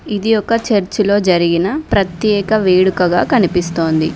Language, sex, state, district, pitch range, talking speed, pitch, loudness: Telugu, female, Telangana, Mahabubabad, 180-215 Hz, 115 wpm, 195 Hz, -14 LUFS